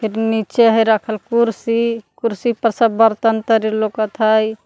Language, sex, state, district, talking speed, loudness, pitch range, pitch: Magahi, female, Jharkhand, Palamu, 140 wpm, -16 LUFS, 220-230 Hz, 225 Hz